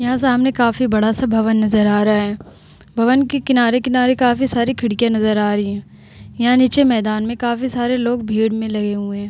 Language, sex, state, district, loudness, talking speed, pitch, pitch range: Hindi, female, Uttar Pradesh, Etah, -16 LUFS, 205 wpm, 235 Hz, 215-250 Hz